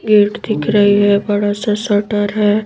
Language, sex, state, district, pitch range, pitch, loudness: Hindi, female, Madhya Pradesh, Bhopal, 205-210 Hz, 205 Hz, -14 LUFS